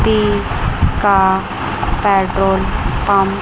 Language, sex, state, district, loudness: Hindi, female, Chandigarh, Chandigarh, -15 LUFS